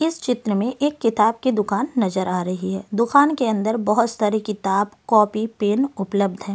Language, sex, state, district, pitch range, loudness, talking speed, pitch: Hindi, female, Delhi, New Delhi, 200-240 Hz, -20 LUFS, 190 wpm, 215 Hz